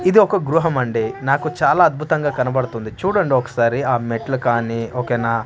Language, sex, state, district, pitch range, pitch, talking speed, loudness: Telugu, male, Andhra Pradesh, Manyam, 115-155 Hz, 130 Hz, 145 wpm, -18 LUFS